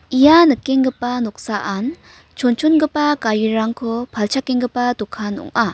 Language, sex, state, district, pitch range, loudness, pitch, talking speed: Garo, female, Meghalaya, North Garo Hills, 220-270 Hz, -17 LUFS, 245 Hz, 85 wpm